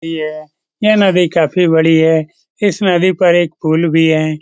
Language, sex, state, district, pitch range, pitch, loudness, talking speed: Hindi, male, Bihar, Lakhisarai, 160-180 Hz, 165 Hz, -13 LUFS, 175 wpm